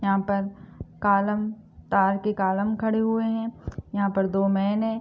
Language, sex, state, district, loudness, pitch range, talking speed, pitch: Hindi, female, Uttar Pradesh, Gorakhpur, -25 LUFS, 195-220 Hz, 155 wpm, 200 Hz